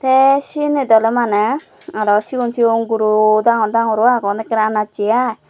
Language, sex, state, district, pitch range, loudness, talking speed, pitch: Chakma, female, Tripura, Dhalai, 215-245 Hz, -15 LUFS, 165 wpm, 225 Hz